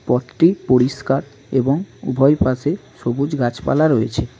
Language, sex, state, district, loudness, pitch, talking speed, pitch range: Bengali, male, West Bengal, Cooch Behar, -18 LUFS, 135 Hz, 110 wpm, 125-145 Hz